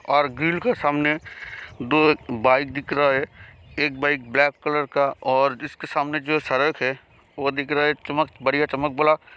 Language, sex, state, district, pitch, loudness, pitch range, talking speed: Hindi, male, Bihar, Kishanganj, 145 Hz, -22 LUFS, 135-150 Hz, 180 wpm